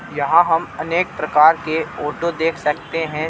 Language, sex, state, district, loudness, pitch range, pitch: Hindi, male, Jharkhand, Ranchi, -18 LUFS, 150-165 Hz, 160 Hz